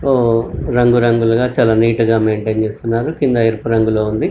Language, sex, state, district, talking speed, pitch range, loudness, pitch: Telugu, male, Telangana, Karimnagar, 180 wpm, 110-120 Hz, -15 LUFS, 115 Hz